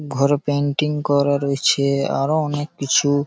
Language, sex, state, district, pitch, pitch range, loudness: Bengali, male, West Bengal, Malda, 145 Hz, 140-145 Hz, -19 LUFS